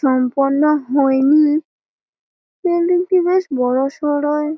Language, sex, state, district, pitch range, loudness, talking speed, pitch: Bengali, female, West Bengal, Malda, 270-320 Hz, -16 LUFS, 80 wpm, 295 Hz